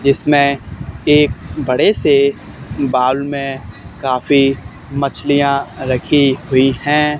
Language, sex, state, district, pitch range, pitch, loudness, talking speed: Hindi, male, Haryana, Charkhi Dadri, 130-140 Hz, 135 Hz, -15 LUFS, 90 wpm